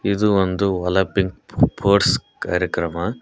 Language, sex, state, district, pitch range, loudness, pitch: Kannada, male, Karnataka, Koppal, 90-100 Hz, -20 LUFS, 95 Hz